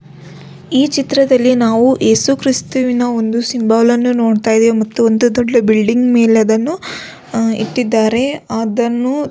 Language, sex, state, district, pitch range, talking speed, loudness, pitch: Kannada, female, Karnataka, Belgaum, 225-255 Hz, 125 wpm, -13 LUFS, 235 Hz